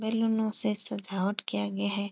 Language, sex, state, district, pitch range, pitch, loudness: Hindi, female, Uttar Pradesh, Etah, 185-220 Hz, 205 Hz, -27 LUFS